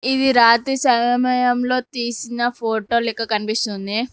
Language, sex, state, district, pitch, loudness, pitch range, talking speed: Telugu, female, Telangana, Mahabubabad, 240 Hz, -18 LUFS, 225-250 Hz, 100 wpm